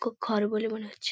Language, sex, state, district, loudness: Bengali, female, West Bengal, Paschim Medinipur, -30 LUFS